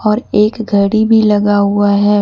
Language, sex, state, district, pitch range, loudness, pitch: Hindi, female, Jharkhand, Deoghar, 205-215 Hz, -12 LUFS, 210 Hz